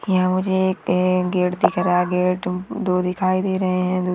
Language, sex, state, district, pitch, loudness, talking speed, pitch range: Marwari, female, Rajasthan, Churu, 185 Hz, -20 LUFS, 185 wpm, 180-185 Hz